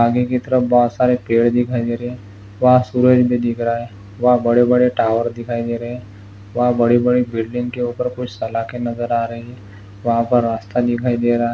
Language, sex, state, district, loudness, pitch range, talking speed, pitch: Hindi, male, Maharashtra, Aurangabad, -17 LUFS, 115-125 Hz, 225 wpm, 120 Hz